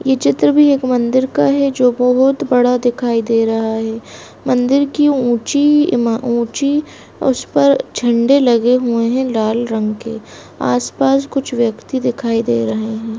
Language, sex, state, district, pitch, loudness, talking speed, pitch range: Hindi, female, Bihar, Jamui, 245 Hz, -15 LUFS, 160 wpm, 225-270 Hz